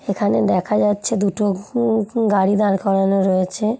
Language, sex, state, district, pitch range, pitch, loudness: Bengali, female, West Bengal, Jhargram, 195-215 Hz, 205 Hz, -18 LUFS